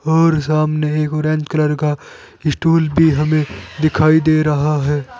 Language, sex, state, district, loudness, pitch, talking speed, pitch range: Hindi, male, Uttar Pradesh, Saharanpur, -16 LUFS, 155 Hz, 150 wpm, 150-155 Hz